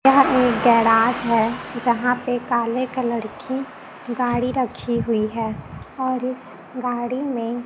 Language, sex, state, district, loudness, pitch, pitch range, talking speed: Hindi, male, Chhattisgarh, Raipur, -21 LUFS, 245 Hz, 235-255 Hz, 135 wpm